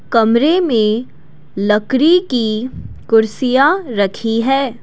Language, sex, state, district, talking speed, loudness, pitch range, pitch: Hindi, female, Assam, Kamrup Metropolitan, 85 wpm, -14 LUFS, 215-270 Hz, 230 Hz